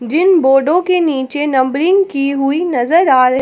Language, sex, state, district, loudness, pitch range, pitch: Hindi, female, Jharkhand, Palamu, -13 LUFS, 265-345 Hz, 285 Hz